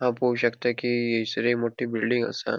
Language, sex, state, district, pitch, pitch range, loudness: Konkani, male, Goa, North and South Goa, 120 Hz, 115-120 Hz, -25 LUFS